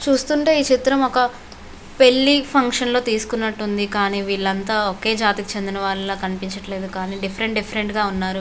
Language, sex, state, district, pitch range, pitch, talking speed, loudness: Telugu, female, Andhra Pradesh, Visakhapatnam, 195-250 Hz, 210 Hz, 120 wpm, -19 LUFS